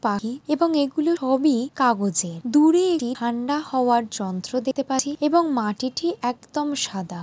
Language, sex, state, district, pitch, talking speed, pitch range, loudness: Bengali, female, West Bengal, Jalpaiguri, 260 Hz, 135 wpm, 235-295 Hz, -22 LUFS